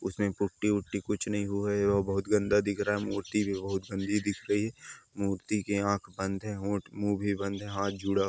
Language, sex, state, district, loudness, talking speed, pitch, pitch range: Hindi, male, Bihar, Vaishali, -31 LUFS, 225 wpm, 100 Hz, 100-105 Hz